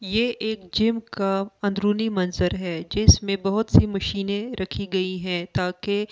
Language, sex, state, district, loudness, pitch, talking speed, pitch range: Hindi, female, Delhi, New Delhi, -23 LUFS, 200 Hz, 145 wpm, 185-210 Hz